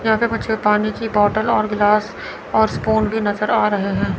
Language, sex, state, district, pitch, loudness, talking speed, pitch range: Hindi, female, Chandigarh, Chandigarh, 215 Hz, -18 LUFS, 200 wpm, 210-220 Hz